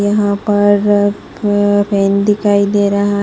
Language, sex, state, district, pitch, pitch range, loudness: Hindi, female, Assam, Hailakandi, 205 Hz, 200-205 Hz, -13 LUFS